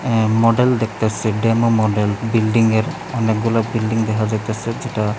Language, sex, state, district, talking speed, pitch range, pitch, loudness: Bengali, male, Tripura, West Tripura, 125 wpm, 110-115 Hz, 110 Hz, -18 LUFS